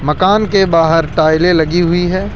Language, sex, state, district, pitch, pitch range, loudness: Hindi, male, Rajasthan, Jaipur, 170 Hz, 160-185 Hz, -12 LUFS